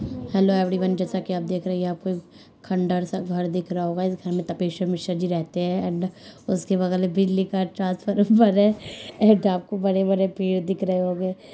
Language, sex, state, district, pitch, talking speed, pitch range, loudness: Hindi, male, Bihar, Sitamarhi, 185 Hz, 205 wpm, 180-190 Hz, -23 LUFS